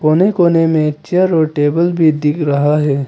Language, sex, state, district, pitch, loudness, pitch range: Hindi, male, Arunachal Pradesh, Papum Pare, 155 Hz, -13 LUFS, 150-170 Hz